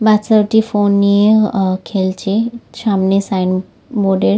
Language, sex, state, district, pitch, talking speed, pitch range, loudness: Bengali, female, West Bengal, Dakshin Dinajpur, 200 Hz, 125 wpm, 190-215 Hz, -14 LUFS